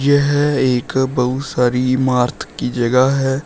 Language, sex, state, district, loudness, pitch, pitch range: Hindi, male, Uttar Pradesh, Shamli, -16 LUFS, 130 Hz, 125-145 Hz